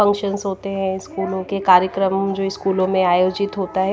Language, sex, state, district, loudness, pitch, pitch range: Hindi, female, Himachal Pradesh, Shimla, -19 LUFS, 195 Hz, 190-195 Hz